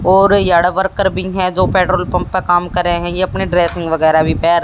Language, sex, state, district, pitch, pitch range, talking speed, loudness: Hindi, female, Haryana, Jhajjar, 180 Hz, 175-185 Hz, 220 wpm, -13 LUFS